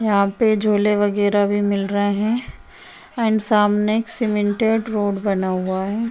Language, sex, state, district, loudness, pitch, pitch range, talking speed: Hindi, female, Bihar, Sitamarhi, -18 LUFS, 205 Hz, 205-220 Hz, 155 wpm